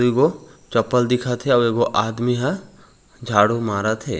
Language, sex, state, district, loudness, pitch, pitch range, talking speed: Chhattisgarhi, male, Chhattisgarh, Raigarh, -20 LUFS, 120 Hz, 110-125 Hz, 155 wpm